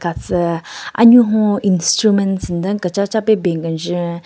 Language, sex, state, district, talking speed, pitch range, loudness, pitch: Rengma, female, Nagaland, Kohima, 125 wpm, 170-210 Hz, -15 LUFS, 190 Hz